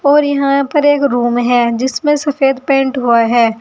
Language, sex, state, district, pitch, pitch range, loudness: Hindi, female, Uttar Pradesh, Saharanpur, 270 Hz, 240-285 Hz, -13 LUFS